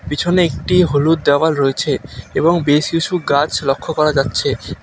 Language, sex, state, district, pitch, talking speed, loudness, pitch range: Bengali, male, West Bengal, Alipurduar, 155 Hz, 150 wpm, -16 LUFS, 145-165 Hz